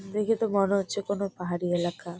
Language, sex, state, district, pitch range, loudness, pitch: Bengali, female, West Bengal, Jalpaiguri, 175-205 Hz, -28 LUFS, 195 Hz